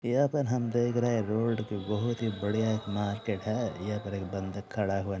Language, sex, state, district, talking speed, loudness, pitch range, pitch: Hindi, male, Jharkhand, Sahebganj, 230 wpm, -31 LUFS, 100-120 Hz, 110 Hz